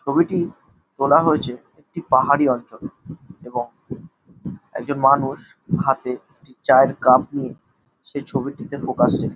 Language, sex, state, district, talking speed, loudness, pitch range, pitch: Bengali, male, West Bengal, Jhargram, 110 wpm, -20 LUFS, 130-145 Hz, 135 Hz